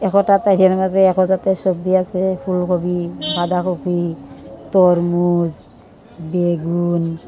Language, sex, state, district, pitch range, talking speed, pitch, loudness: Bengali, female, Tripura, Unakoti, 170-190 Hz, 80 wpm, 180 Hz, -17 LUFS